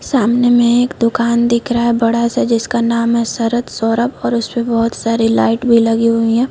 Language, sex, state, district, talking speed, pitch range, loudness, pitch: Hindi, female, Chhattisgarh, Korba, 210 wpm, 230-240 Hz, -14 LUFS, 235 Hz